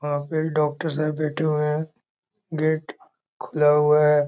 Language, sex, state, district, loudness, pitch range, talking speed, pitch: Hindi, male, Bihar, East Champaran, -23 LUFS, 150-155 Hz, 155 wpm, 155 Hz